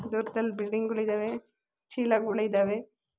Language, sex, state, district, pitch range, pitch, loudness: Kannada, female, Karnataka, Belgaum, 210-225 Hz, 220 Hz, -29 LUFS